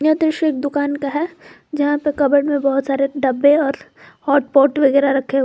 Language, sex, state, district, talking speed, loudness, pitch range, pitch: Hindi, female, Jharkhand, Garhwa, 200 wpm, -17 LUFS, 275-295 Hz, 285 Hz